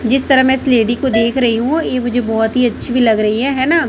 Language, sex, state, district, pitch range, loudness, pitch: Hindi, female, Chhattisgarh, Raipur, 230-265 Hz, -14 LUFS, 250 Hz